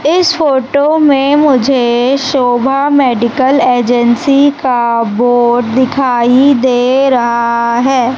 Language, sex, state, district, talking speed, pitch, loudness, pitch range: Hindi, male, Madhya Pradesh, Umaria, 95 wpm, 260 Hz, -10 LUFS, 240-275 Hz